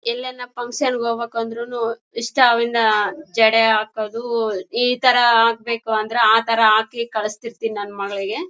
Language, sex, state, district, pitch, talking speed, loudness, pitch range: Kannada, female, Karnataka, Bellary, 230 Hz, 135 wpm, -18 LUFS, 220-240 Hz